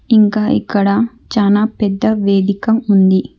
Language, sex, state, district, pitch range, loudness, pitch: Telugu, female, Telangana, Hyderabad, 200-220 Hz, -14 LUFS, 210 Hz